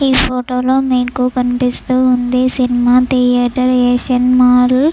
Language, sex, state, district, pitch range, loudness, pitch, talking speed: Telugu, female, Andhra Pradesh, Chittoor, 250-255 Hz, -13 LUFS, 250 Hz, 145 wpm